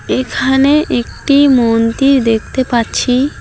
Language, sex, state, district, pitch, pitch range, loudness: Bengali, female, West Bengal, Alipurduar, 260 Hz, 235-275 Hz, -12 LUFS